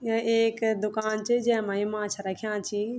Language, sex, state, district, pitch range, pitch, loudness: Garhwali, female, Uttarakhand, Tehri Garhwal, 210-225 Hz, 215 Hz, -27 LUFS